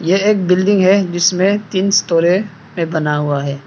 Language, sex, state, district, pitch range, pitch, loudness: Hindi, male, Arunachal Pradesh, Papum Pare, 165-195 Hz, 180 Hz, -14 LUFS